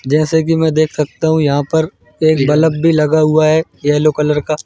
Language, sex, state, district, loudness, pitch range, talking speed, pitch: Hindi, male, Madhya Pradesh, Bhopal, -13 LUFS, 150-160 Hz, 220 wpm, 155 Hz